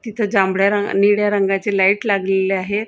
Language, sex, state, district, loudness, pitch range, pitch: Marathi, female, Maharashtra, Gondia, -17 LUFS, 195-205 Hz, 200 Hz